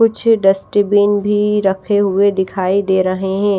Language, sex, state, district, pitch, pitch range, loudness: Hindi, female, Odisha, Malkangiri, 200 Hz, 190-205 Hz, -15 LUFS